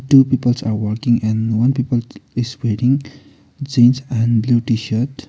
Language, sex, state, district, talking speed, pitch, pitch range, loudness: English, male, Sikkim, Gangtok, 145 wpm, 120 Hz, 115-130 Hz, -17 LUFS